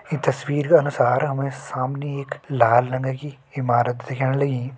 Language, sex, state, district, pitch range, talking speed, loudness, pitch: Hindi, male, Uttarakhand, Tehri Garhwal, 130-145 Hz, 165 wpm, -22 LUFS, 135 Hz